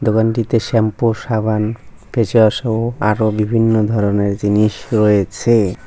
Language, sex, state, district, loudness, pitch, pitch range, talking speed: Bengali, male, West Bengal, Cooch Behar, -16 LUFS, 110 Hz, 105-115 Hz, 100 wpm